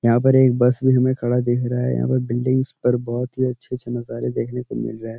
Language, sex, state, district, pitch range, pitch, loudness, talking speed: Hindi, male, Uttar Pradesh, Etah, 120-130 Hz, 125 Hz, -20 LUFS, 255 wpm